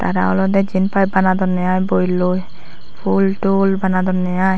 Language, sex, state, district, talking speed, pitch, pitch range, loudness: Chakma, female, Tripura, Dhalai, 120 wpm, 185 Hz, 180-195 Hz, -17 LUFS